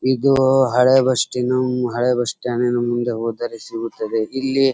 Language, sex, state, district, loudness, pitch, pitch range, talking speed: Kannada, male, Karnataka, Dharwad, -19 LUFS, 125 Hz, 120-130 Hz, 165 wpm